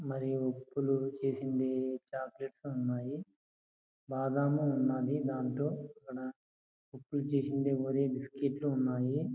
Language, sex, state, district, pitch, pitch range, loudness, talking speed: Telugu, male, Andhra Pradesh, Anantapur, 135 Hz, 130-140 Hz, -35 LUFS, 85 wpm